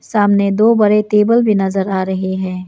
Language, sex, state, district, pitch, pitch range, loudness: Hindi, female, Arunachal Pradesh, Lower Dibang Valley, 200 Hz, 190-210 Hz, -14 LUFS